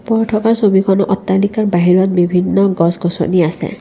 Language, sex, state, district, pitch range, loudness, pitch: Assamese, female, Assam, Kamrup Metropolitan, 175-200 Hz, -13 LUFS, 190 Hz